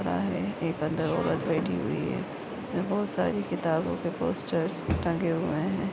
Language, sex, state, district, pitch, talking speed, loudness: Hindi, female, Maharashtra, Nagpur, 160 Hz, 180 wpm, -29 LUFS